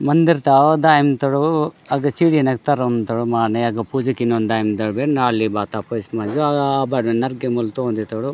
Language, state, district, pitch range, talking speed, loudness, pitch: Gondi, Chhattisgarh, Sukma, 115-145 Hz, 160 wpm, -18 LUFS, 130 Hz